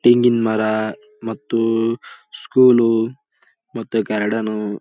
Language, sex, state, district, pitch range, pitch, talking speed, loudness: Kannada, male, Karnataka, Bijapur, 110-120 Hz, 115 Hz, 85 wpm, -18 LUFS